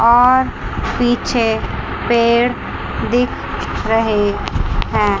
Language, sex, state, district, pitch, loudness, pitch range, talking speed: Hindi, female, Chandigarh, Chandigarh, 235 Hz, -17 LUFS, 220-240 Hz, 70 wpm